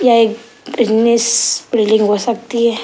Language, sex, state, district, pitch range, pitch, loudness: Hindi, male, Bihar, Sitamarhi, 220-235 Hz, 235 Hz, -14 LUFS